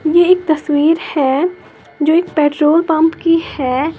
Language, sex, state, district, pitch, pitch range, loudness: Hindi, female, Uttar Pradesh, Lalitpur, 320 Hz, 295-335 Hz, -14 LUFS